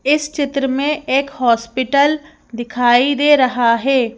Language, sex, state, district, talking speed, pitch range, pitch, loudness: Hindi, female, Madhya Pradesh, Bhopal, 130 wpm, 245-285 Hz, 270 Hz, -15 LUFS